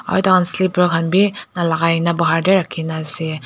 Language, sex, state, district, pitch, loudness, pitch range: Nagamese, female, Nagaland, Dimapur, 170 Hz, -17 LUFS, 165-185 Hz